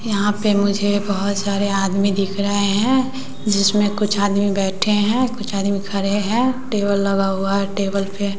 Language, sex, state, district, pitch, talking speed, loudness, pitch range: Hindi, female, Bihar, West Champaran, 200 Hz, 170 wpm, -19 LUFS, 200-210 Hz